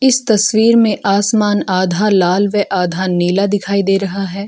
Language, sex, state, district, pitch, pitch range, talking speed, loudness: Hindi, female, Bihar, Gaya, 200 Hz, 190-210 Hz, 175 wpm, -14 LUFS